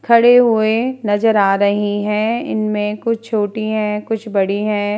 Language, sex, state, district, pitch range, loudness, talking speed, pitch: Hindi, female, Bihar, Vaishali, 205-225 Hz, -16 LUFS, 170 wpm, 215 Hz